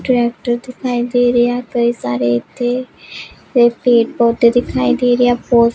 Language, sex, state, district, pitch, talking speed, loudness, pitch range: Hindi, female, Punjab, Pathankot, 240 Hz, 175 wpm, -15 LUFS, 235-245 Hz